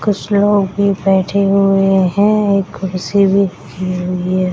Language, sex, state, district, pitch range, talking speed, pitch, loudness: Hindi, female, Bihar, Madhepura, 185-200 Hz, 160 wpm, 195 Hz, -14 LUFS